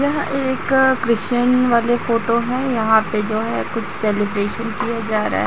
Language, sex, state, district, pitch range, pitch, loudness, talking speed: Hindi, female, Chhattisgarh, Raipur, 215-250 Hz, 230 Hz, -18 LUFS, 175 wpm